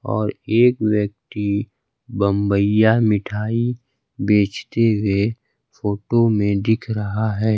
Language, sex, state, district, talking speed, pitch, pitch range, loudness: Hindi, male, Bihar, Kaimur, 95 wpm, 110 Hz, 100-115 Hz, -19 LUFS